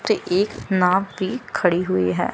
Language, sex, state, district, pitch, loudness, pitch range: Hindi, female, Chandigarh, Chandigarh, 185 Hz, -21 LUFS, 175-195 Hz